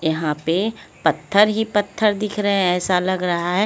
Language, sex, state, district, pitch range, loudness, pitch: Hindi, female, Chhattisgarh, Raipur, 170-210 Hz, -20 LUFS, 185 Hz